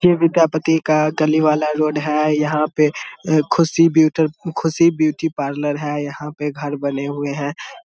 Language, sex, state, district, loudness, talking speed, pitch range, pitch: Hindi, male, Bihar, Samastipur, -18 LUFS, 170 wpm, 150-160 Hz, 155 Hz